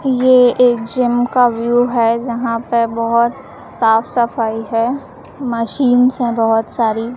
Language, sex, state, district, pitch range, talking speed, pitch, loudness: Hindi, female, Chhattisgarh, Raipur, 230-250 Hz, 140 wpm, 235 Hz, -15 LUFS